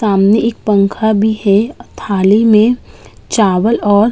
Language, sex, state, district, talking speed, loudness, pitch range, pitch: Hindi, female, Uttar Pradesh, Budaun, 160 wpm, -12 LUFS, 200-225 Hz, 215 Hz